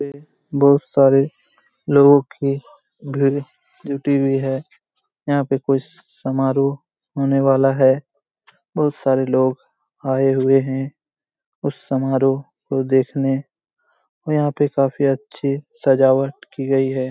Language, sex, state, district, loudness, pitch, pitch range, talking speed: Hindi, male, Jharkhand, Jamtara, -18 LUFS, 135 Hz, 135-140 Hz, 115 wpm